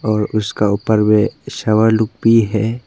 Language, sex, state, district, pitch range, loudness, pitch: Hindi, male, Arunachal Pradesh, Papum Pare, 105-110 Hz, -15 LUFS, 110 Hz